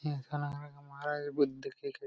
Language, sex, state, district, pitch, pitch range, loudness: Hindi, male, Jharkhand, Jamtara, 145 Hz, 145-150 Hz, -36 LUFS